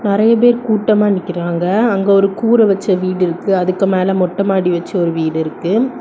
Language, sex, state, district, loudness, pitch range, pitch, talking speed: Tamil, female, Tamil Nadu, Kanyakumari, -14 LUFS, 180-210 Hz, 195 Hz, 180 wpm